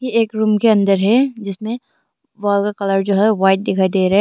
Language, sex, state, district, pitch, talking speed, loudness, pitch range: Hindi, female, Arunachal Pradesh, Longding, 205 Hz, 230 wpm, -16 LUFS, 195-225 Hz